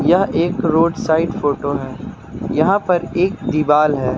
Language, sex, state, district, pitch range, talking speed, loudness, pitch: Hindi, male, Uttar Pradesh, Lucknow, 150-180 Hz, 160 wpm, -17 LUFS, 160 Hz